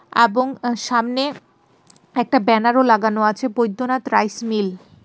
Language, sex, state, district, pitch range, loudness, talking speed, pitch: Bengali, female, Tripura, West Tripura, 220-255 Hz, -19 LUFS, 120 wpm, 235 Hz